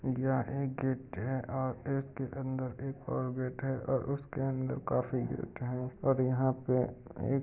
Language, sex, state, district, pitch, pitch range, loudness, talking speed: Hindi, male, Uttar Pradesh, Jyotiba Phule Nagar, 130 Hz, 130-135 Hz, -35 LUFS, 175 wpm